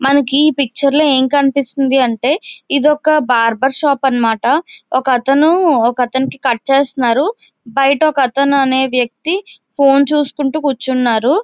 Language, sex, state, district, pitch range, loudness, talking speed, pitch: Telugu, female, Andhra Pradesh, Visakhapatnam, 260-295 Hz, -13 LUFS, 135 wpm, 275 Hz